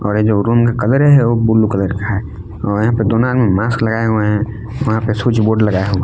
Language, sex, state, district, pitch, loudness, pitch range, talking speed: Hindi, male, Jharkhand, Palamu, 110 Hz, -14 LUFS, 105-115 Hz, 240 wpm